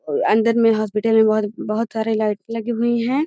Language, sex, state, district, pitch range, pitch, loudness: Magahi, female, Bihar, Gaya, 215-230 Hz, 225 Hz, -19 LUFS